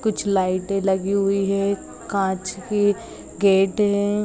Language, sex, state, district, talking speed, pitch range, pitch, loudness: Hindi, female, Jharkhand, Sahebganj, 140 wpm, 190-205 Hz, 195 Hz, -21 LUFS